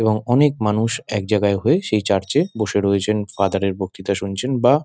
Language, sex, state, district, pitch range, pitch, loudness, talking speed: Bengali, male, West Bengal, Dakshin Dinajpur, 100-120 Hz, 105 Hz, -19 LUFS, 185 wpm